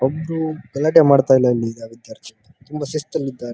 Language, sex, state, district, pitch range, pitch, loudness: Kannada, male, Karnataka, Dharwad, 120-155 Hz, 140 Hz, -18 LUFS